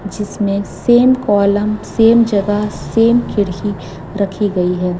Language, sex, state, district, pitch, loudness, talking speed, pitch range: Hindi, female, Chhattisgarh, Raipur, 205 Hz, -14 LUFS, 120 wpm, 195-225 Hz